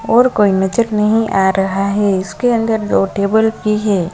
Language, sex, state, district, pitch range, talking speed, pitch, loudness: Hindi, female, Bihar, Darbhanga, 195-220 Hz, 190 wpm, 210 Hz, -14 LUFS